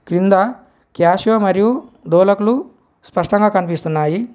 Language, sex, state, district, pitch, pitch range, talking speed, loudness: Telugu, male, Telangana, Komaram Bheem, 195 Hz, 180-225 Hz, 85 wpm, -16 LUFS